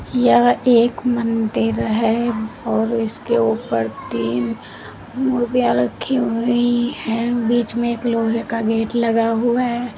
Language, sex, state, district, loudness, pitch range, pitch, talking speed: Hindi, female, Uttar Pradesh, Lalitpur, -19 LUFS, 215-240 Hz, 230 Hz, 125 wpm